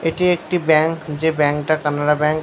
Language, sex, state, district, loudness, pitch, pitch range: Bengali, male, West Bengal, Paschim Medinipur, -18 LUFS, 155 Hz, 150-165 Hz